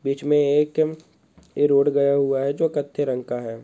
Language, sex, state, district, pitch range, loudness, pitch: Hindi, male, Goa, North and South Goa, 130-145 Hz, -21 LUFS, 140 Hz